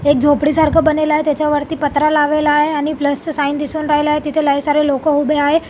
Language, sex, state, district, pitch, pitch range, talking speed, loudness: Marathi, female, Maharashtra, Solapur, 300 Hz, 290-305 Hz, 190 wpm, -15 LUFS